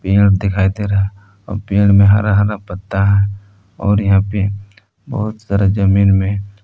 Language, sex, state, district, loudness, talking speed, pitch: Hindi, male, Jharkhand, Palamu, -15 LUFS, 170 wpm, 100 Hz